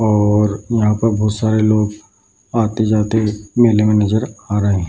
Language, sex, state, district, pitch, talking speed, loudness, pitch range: Hindi, male, Bihar, Bhagalpur, 105 Hz, 160 wpm, -16 LUFS, 105-110 Hz